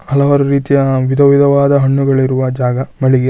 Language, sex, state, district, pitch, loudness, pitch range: Kannada, male, Karnataka, Shimoga, 135 Hz, -12 LUFS, 130-140 Hz